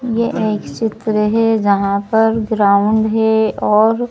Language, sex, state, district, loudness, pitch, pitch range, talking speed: Hindi, female, Madhya Pradesh, Bhopal, -15 LUFS, 220 Hz, 210-225 Hz, 115 wpm